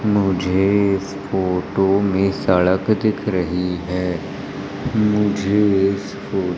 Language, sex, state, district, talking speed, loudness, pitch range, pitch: Hindi, female, Madhya Pradesh, Umaria, 100 wpm, -19 LUFS, 95-100 Hz, 100 Hz